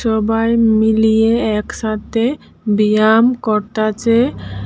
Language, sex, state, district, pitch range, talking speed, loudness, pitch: Bengali, female, Tripura, Dhalai, 215-230 Hz, 65 wpm, -15 LUFS, 220 Hz